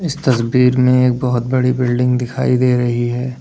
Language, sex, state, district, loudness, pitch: Hindi, male, Uttar Pradesh, Lalitpur, -15 LUFS, 125 Hz